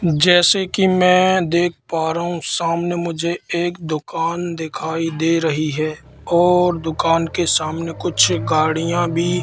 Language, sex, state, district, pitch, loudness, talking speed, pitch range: Hindi, male, Madhya Pradesh, Katni, 170 Hz, -18 LUFS, 140 wpm, 160-175 Hz